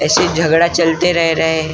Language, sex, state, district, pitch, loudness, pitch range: Hindi, male, Maharashtra, Gondia, 165 Hz, -13 LUFS, 160-170 Hz